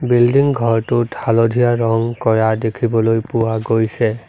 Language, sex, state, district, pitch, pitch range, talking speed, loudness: Assamese, male, Assam, Sonitpur, 115 Hz, 115-120 Hz, 110 wpm, -16 LUFS